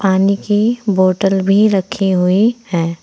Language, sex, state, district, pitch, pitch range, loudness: Hindi, female, Uttar Pradesh, Saharanpur, 195 Hz, 185-210 Hz, -14 LUFS